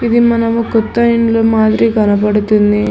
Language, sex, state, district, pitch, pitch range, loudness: Telugu, female, Telangana, Hyderabad, 225 Hz, 215-230 Hz, -12 LUFS